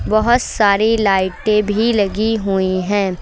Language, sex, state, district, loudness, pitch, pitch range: Hindi, female, Uttar Pradesh, Lucknow, -16 LUFS, 205 Hz, 195-220 Hz